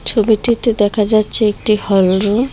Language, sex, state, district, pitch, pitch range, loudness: Bengali, female, Assam, Hailakandi, 215 Hz, 205-225 Hz, -14 LUFS